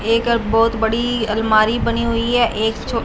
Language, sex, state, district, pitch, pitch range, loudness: Hindi, female, Punjab, Fazilka, 230 Hz, 220-235 Hz, -17 LUFS